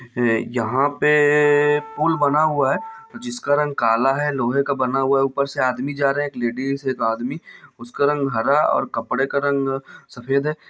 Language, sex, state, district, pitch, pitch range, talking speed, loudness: Hindi, male, Bihar, Darbhanga, 140 Hz, 130-145 Hz, 210 wpm, -20 LUFS